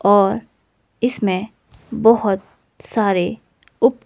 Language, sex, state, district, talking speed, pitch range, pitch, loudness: Hindi, female, Himachal Pradesh, Shimla, 75 wpm, 195-225 Hz, 205 Hz, -18 LUFS